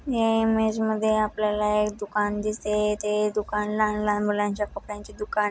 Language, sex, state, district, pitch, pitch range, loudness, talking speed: Marathi, female, Maharashtra, Dhule, 210 Hz, 210-215 Hz, -25 LUFS, 155 wpm